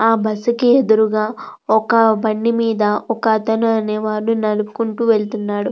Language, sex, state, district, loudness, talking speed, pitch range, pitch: Telugu, female, Andhra Pradesh, Krishna, -17 LUFS, 115 wpm, 215-230 Hz, 220 Hz